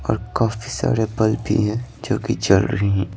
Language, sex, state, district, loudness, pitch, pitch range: Hindi, male, Bihar, Patna, -20 LUFS, 110 Hz, 105-115 Hz